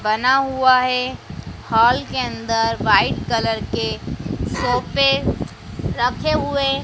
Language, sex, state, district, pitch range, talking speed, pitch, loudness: Hindi, female, Madhya Pradesh, Dhar, 225-265 Hz, 105 wpm, 255 Hz, -19 LUFS